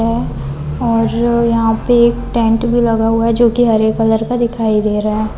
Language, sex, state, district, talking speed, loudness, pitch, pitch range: Hindi, female, Uttar Pradesh, Hamirpur, 210 wpm, -14 LUFS, 225 Hz, 220-235 Hz